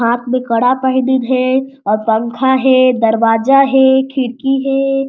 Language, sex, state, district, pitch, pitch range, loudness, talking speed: Chhattisgarhi, female, Chhattisgarh, Jashpur, 260 Hz, 235-270 Hz, -13 LUFS, 140 wpm